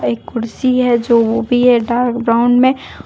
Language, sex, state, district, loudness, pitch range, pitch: Hindi, female, Jharkhand, Deoghar, -14 LUFS, 230-245 Hz, 240 Hz